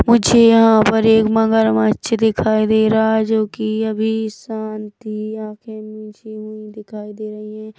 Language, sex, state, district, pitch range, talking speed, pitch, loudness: Hindi, male, Chhattisgarh, Rajnandgaon, 215-220 Hz, 155 wpm, 220 Hz, -15 LUFS